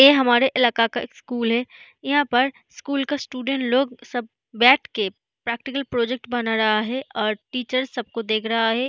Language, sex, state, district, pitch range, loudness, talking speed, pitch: Hindi, female, Bihar, East Champaran, 230-265 Hz, -22 LUFS, 180 wpm, 245 Hz